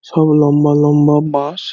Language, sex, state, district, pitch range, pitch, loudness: Bengali, male, West Bengal, Dakshin Dinajpur, 145-150 Hz, 150 Hz, -12 LUFS